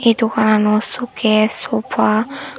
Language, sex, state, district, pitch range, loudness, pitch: Chakma, female, Tripura, Dhalai, 215-230 Hz, -16 LUFS, 220 Hz